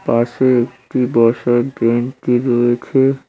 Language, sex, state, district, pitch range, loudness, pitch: Bengali, male, West Bengal, Cooch Behar, 120-130 Hz, -16 LUFS, 120 Hz